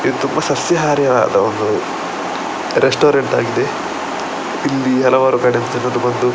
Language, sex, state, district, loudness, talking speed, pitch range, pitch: Kannada, male, Karnataka, Dakshina Kannada, -16 LUFS, 115 wpm, 125-140 Hz, 130 Hz